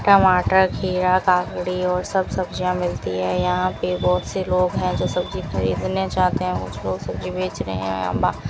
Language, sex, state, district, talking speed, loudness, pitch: Hindi, female, Rajasthan, Bikaner, 175 wpm, -21 LUFS, 180 Hz